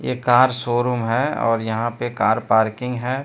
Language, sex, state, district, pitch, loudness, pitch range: Hindi, male, Bihar, Katihar, 120 Hz, -20 LUFS, 110-125 Hz